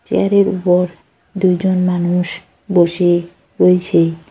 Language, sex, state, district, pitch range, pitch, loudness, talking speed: Bengali, female, West Bengal, Cooch Behar, 175-185 Hz, 180 Hz, -15 LUFS, 85 wpm